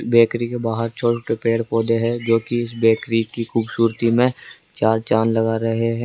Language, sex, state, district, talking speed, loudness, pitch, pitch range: Hindi, male, Rajasthan, Jaipur, 200 wpm, -20 LUFS, 115 Hz, 115-120 Hz